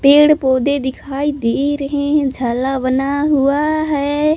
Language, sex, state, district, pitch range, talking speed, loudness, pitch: Hindi, female, Jharkhand, Palamu, 265-295 Hz, 135 wpm, -16 LUFS, 280 Hz